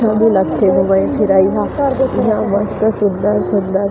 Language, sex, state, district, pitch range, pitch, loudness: Chhattisgarhi, female, Chhattisgarh, Rajnandgaon, 195-220 Hz, 205 Hz, -14 LUFS